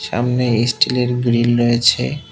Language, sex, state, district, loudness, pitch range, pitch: Bengali, male, West Bengal, Cooch Behar, -16 LUFS, 120-125 Hz, 120 Hz